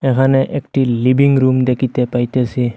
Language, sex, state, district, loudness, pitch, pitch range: Bengali, male, Assam, Hailakandi, -15 LUFS, 130 Hz, 125-135 Hz